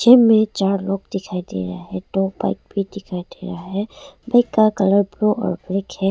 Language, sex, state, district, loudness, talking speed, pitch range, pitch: Hindi, female, Arunachal Pradesh, Longding, -20 LUFS, 195 wpm, 190-215 Hz, 195 Hz